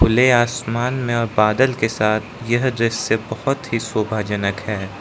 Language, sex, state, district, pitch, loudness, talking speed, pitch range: Hindi, male, Arunachal Pradesh, Lower Dibang Valley, 115 Hz, -19 LUFS, 165 wpm, 105-120 Hz